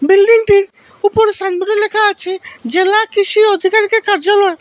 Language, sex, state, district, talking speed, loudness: Bengali, male, Assam, Hailakandi, 130 wpm, -12 LUFS